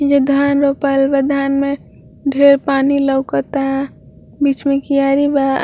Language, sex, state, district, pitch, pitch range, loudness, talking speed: Bhojpuri, female, Bihar, Gopalganj, 275 Hz, 275-280 Hz, -15 LUFS, 140 wpm